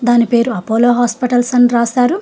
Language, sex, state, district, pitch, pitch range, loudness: Telugu, female, Telangana, Hyderabad, 245 Hz, 235-245 Hz, -13 LUFS